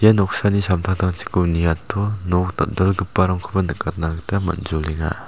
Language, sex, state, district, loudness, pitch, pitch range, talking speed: Garo, male, Meghalaya, South Garo Hills, -20 LUFS, 90 Hz, 85-100 Hz, 100 wpm